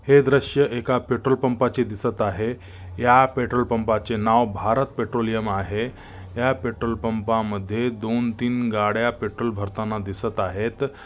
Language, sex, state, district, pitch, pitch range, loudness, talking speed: Marathi, male, Maharashtra, Nagpur, 115 Hz, 105-125 Hz, -23 LUFS, 135 wpm